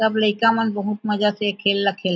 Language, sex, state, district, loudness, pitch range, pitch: Chhattisgarhi, female, Chhattisgarh, Raigarh, -20 LUFS, 200-220 Hz, 210 Hz